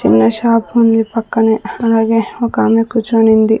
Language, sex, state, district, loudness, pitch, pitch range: Telugu, female, Andhra Pradesh, Sri Satya Sai, -13 LUFS, 225 Hz, 220-230 Hz